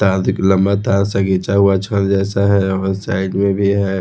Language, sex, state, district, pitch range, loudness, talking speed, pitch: Hindi, male, Odisha, Khordha, 95-100 Hz, -16 LUFS, 225 wpm, 100 Hz